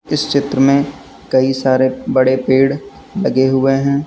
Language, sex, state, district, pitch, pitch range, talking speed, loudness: Hindi, male, Uttar Pradesh, Lucknow, 135 Hz, 130-140 Hz, 145 wpm, -14 LUFS